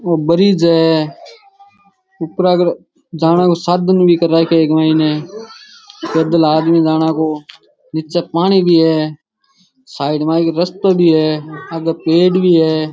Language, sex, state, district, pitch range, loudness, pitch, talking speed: Rajasthani, male, Rajasthan, Churu, 160-185 Hz, -13 LUFS, 165 Hz, 145 wpm